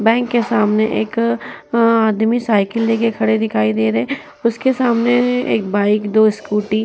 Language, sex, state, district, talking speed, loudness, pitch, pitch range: Hindi, female, Uttar Pradesh, Muzaffarnagar, 165 wpm, -16 LUFS, 225 Hz, 210-235 Hz